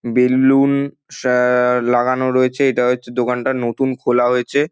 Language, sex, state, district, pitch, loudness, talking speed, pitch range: Bengali, male, West Bengal, Dakshin Dinajpur, 125 Hz, -16 LUFS, 125 wpm, 125-135 Hz